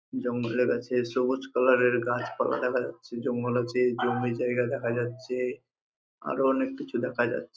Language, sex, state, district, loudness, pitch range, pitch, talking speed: Bengali, male, West Bengal, Jhargram, -28 LUFS, 120-125 Hz, 125 Hz, 160 wpm